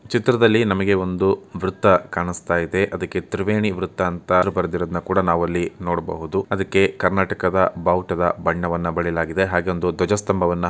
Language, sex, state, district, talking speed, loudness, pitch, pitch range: Kannada, male, Karnataka, Mysore, 130 wpm, -20 LUFS, 90 Hz, 85-95 Hz